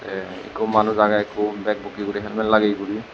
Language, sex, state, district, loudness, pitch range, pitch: Chakma, male, Tripura, West Tripura, -21 LUFS, 105-110 Hz, 105 Hz